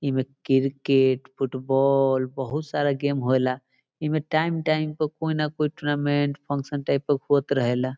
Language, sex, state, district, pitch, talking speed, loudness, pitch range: Bhojpuri, male, Bihar, Saran, 140 Hz, 150 wpm, -24 LUFS, 135-150 Hz